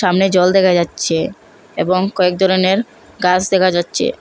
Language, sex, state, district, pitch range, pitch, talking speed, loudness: Bengali, female, Assam, Hailakandi, 180-195 Hz, 185 Hz, 140 wpm, -15 LUFS